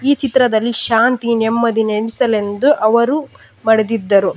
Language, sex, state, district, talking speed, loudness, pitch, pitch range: Kannada, female, Karnataka, Dakshina Kannada, 95 wpm, -15 LUFS, 230 Hz, 220-250 Hz